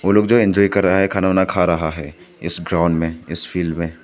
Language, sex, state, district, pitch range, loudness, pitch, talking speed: Hindi, male, Arunachal Pradesh, Papum Pare, 85-95 Hz, -17 LUFS, 90 Hz, 235 wpm